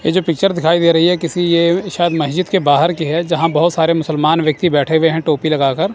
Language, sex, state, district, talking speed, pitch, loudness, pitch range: Hindi, male, Punjab, Kapurthala, 250 wpm, 165 Hz, -14 LUFS, 160-175 Hz